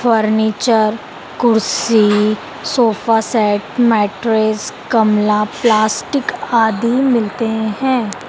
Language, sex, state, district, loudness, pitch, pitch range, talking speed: Hindi, female, Madhya Pradesh, Dhar, -15 LUFS, 220 Hz, 215-235 Hz, 70 wpm